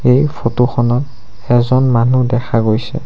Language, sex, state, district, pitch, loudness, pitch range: Assamese, male, Assam, Sonitpur, 125 Hz, -14 LUFS, 115-130 Hz